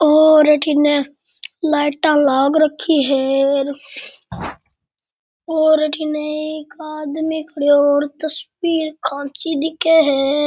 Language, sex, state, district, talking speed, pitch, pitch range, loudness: Rajasthani, male, Rajasthan, Nagaur, 90 wpm, 300 Hz, 285-315 Hz, -16 LUFS